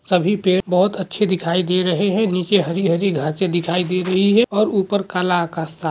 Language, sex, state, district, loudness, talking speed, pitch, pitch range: Hindi, male, Andhra Pradesh, Krishna, -18 LUFS, 215 wpm, 185 Hz, 175-200 Hz